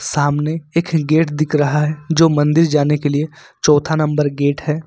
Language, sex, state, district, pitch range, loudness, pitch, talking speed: Hindi, male, Jharkhand, Ranchi, 145-160 Hz, -16 LUFS, 150 Hz, 185 wpm